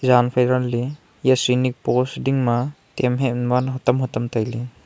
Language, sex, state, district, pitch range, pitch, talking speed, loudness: Wancho, male, Arunachal Pradesh, Longding, 120-130 Hz, 125 Hz, 135 wpm, -21 LUFS